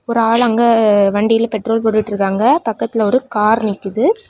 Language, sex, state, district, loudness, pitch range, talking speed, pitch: Tamil, female, Tamil Nadu, Kanyakumari, -14 LUFS, 210-230 Hz, 155 wpm, 225 Hz